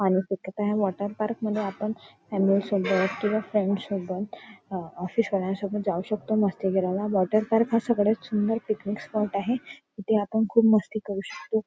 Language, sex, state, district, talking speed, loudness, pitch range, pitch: Marathi, female, Maharashtra, Nagpur, 180 wpm, -26 LUFS, 195-215 Hz, 205 Hz